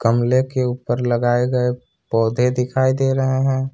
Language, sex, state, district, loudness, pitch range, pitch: Hindi, male, Jharkhand, Ranchi, -19 LUFS, 120-130 Hz, 125 Hz